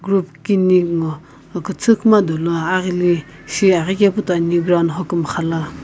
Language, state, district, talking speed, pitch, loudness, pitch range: Sumi, Nagaland, Kohima, 145 wpm, 175 Hz, -17 LUFS, 165-190 Hz